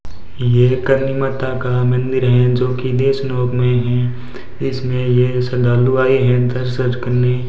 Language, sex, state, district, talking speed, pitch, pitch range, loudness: Hindi, male, Rajasthan, Bikaner, 145 wpm, 125 Hz, 125-130 Hz, -16 LUFS